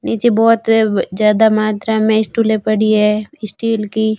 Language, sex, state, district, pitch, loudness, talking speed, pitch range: Hindi, female, Rajasthan, Barmer, 220 Hz, -14 LUFS, 155 wpm, 215-225 Hz